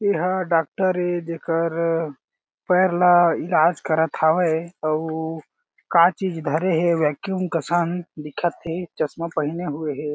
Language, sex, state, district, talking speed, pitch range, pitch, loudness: Chhattisgarhi, male, Chhattisgarh, Jashpur, 135 wpm, 160-180 Hz, 165 Hz, -22 LUFS